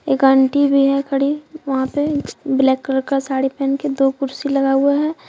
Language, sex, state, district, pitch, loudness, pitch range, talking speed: Hindi, female, Jharkhand, Deoghar, 275 Hz, -17 LUFS, 270-285 Hz, 205 wpm